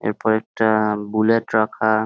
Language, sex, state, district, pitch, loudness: Bengali, male, West Bengal, Jhargram, 110 Hz, -19 LUFS